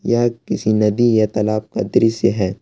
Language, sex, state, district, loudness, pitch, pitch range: Hindi, male, Jharkhand, Ranchi, -17 LUFS, 110 Hz, 105-115 Hz